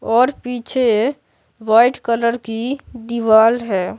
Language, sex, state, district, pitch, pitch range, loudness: Hindi, male, Bihar, Patna, 235 Hz, 225-245 Hz, -17 LUFS